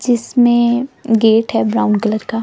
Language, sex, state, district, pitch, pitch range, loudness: Hindi, female, Delhi, New Delhi, 230 Hz, 220-240 Hz, -14 LUFS